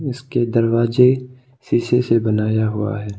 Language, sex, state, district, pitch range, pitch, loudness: Hindi, male, Arunachal Pradesh, Papum Pare, 110-125 Hz, 115 Hz, -18 LUFS